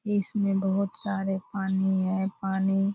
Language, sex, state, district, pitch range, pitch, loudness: Hindi, female, Bihar, Purnia, 190-200 Hz, 195 Hz, -27 LUFS